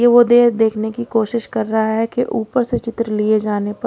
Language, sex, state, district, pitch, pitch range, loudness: Hindi, female, Odisha, Khordha, 225 Hz, 220-240 Hz, -17 LUFS